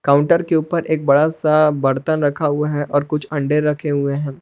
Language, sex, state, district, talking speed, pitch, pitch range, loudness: Hindi, male, Jharkhand, Palamu, 215 wpm, 150 Hz, 145-155 Hz, -17 LUFS